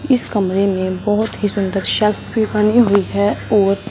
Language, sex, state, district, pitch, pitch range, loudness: Hindi, female, Punjab, Fazilka, 205 Hz, 195-215 Hz, -16 LUFS